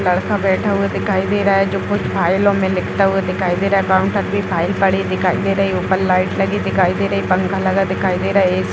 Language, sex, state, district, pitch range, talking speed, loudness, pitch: Hindi, female, Bihar, Jahanabad, 185-195 Hz, 280 wpm, -16 LUFS, 190 Hz